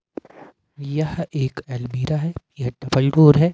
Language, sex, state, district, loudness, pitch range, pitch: Hindi, male, Madhya Pradesh, Katni, -21 LUFS, 130-155 Hz, 145 Hz